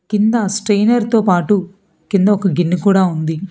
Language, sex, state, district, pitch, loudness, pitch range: Telugu, female, Telangana, Hyderabad, 195 Hz, -15 LUFS, 180-210 Hz